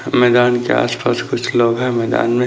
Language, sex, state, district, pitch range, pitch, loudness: Hindi, male, Chhattisgarh, Bastar, 120-125 Hz, 120 Hz, -15 LUFS